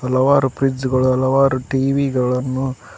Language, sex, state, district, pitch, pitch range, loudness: Kannada, male, Karnataka, Koppal, 130 Hz, 130-135 Hz, -17 LUFS